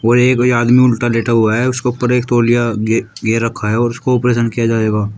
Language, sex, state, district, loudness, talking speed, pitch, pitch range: Hindi, male, Uttar Pradesh, Shamli, -14 LUFS, 245 wpm, 120 Hz, 115-125 Hz